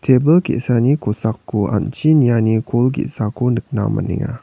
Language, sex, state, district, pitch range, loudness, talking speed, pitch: Garo, male, Meghalaya, West Garo Hills, 110-140 Hz, -17 LUFS, 120 wpm, 120 Hz